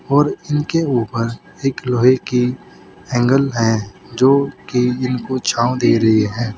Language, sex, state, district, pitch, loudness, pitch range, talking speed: Hindi, male, Uttar Pradesh, Saharanpur, 125 Hz, -17 LUFS, 115-135 Hz, 135 wpm